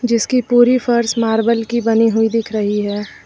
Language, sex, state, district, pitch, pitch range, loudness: Hindi, female, Uttar Pradesh, Lucknow, 230 Hz, 220-240 Hz, -15 LUFS